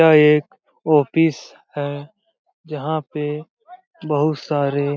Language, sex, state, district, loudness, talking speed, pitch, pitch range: Hindi, male, Bihar, Jamui, -19 LUFS, 110 wpm, 150 Hz, 145-165 Hz